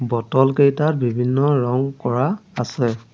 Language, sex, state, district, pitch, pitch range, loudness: Assamese, male, Assam, Sonitpur, 130 Hz, 120-140 Hz, -19 LUFS